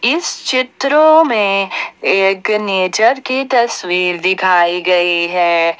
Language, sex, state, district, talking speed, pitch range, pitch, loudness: Hindi, female, Jharkhand, Ranchi, 105 wpm, 180-255 Hz, 195 Hz, -13 LUFS